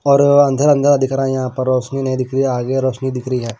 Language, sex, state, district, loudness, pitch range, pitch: Hindi, male, Maharashtra, Washim, -16 LUFS, 130-135 Hz, 130 Hz